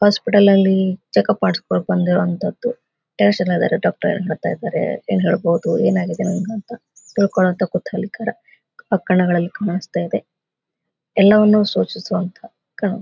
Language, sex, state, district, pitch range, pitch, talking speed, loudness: Kannada, female, Karnataka, Gulbarga, 175-210 Hz, 195 Hz, 90 wpm, -18 LUFS